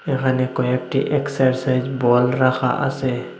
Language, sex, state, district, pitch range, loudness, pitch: Bengali, male, Assam, Hailakandi, 125-135 Hz, -19 LUFS, 130 Hz